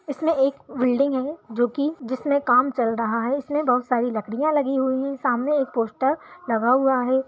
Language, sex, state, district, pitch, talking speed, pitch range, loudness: Hindi, female, Bihar, Gaya, 260 Hz, 200 wpm, 245-280 Hz, -22 LUFS